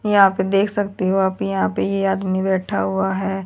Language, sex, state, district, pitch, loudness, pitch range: Hindi, female, Haryana, Charkhi Dadri, 195 Hz, -19 LUFS, 190-195 Hz